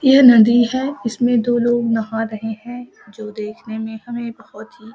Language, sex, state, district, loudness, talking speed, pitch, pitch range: Maithili, female, Bihar, Samastipur, -17 LUFS, 195 wpm, 230 Hz, 220-240 Hz